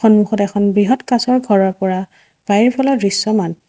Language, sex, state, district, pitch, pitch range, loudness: Assamese, female, Assam, Sonitpur, 205 Hz, 195-235 Hz, -15 LUFS